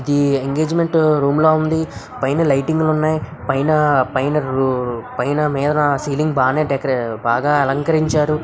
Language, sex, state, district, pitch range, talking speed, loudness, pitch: Telugu, male, Andhra Pradesh, Visakhapatnam, 135-155 Hz, 140 wpm, -17 LUFS, 145 Hz